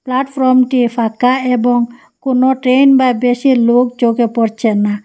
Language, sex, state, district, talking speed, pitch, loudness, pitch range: Bengali, female, Assam, Hailakandi, 130 wpm, 245 Hz, -13 LUFS, 235-260 Hz